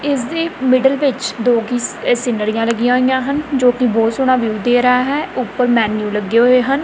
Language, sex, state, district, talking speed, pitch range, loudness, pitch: Punjabi, female, Punjab, Kapurthala, 195 wpm, 235-265 Hz, -15 LUFS, 250 Hz